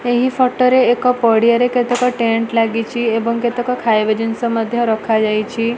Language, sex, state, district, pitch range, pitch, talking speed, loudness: Odia, female, Odisha, Malkangiri, 225-245 Hz, 235 Hz, 155 wpm, -16 LUFS